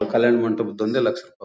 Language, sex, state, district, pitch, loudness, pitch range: Kannada, male, Karnataka, Bellary, 120 Hz, -21 LUFS, 115-175 Hz